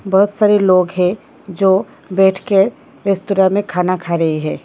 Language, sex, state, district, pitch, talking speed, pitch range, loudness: Hindi, female, Delhi, New Delhi, 190 Hz, 155 wpm, 180-200 Hz, -15 LUFS